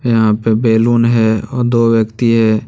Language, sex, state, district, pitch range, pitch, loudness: Hindi, male, Jharkhand, Deoghar, 110-120 Hz, 115 Hz, -13 LUFS